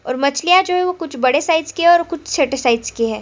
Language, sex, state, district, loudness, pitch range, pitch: Hindi, female, Chhattisgarh, Sukma, -16 LUFS, 255-345 Hz, 315 Hz